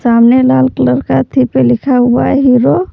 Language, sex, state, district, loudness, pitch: Hindi, female, Jharkhand, Palamu, -10 LUFS, 245 Hz